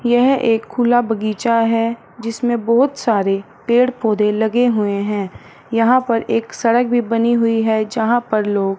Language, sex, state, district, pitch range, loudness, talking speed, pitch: Hindi, female, Punjab, Fazilka, 215-240 Hz, -17 LUFS, 165 wpm, 230 Hz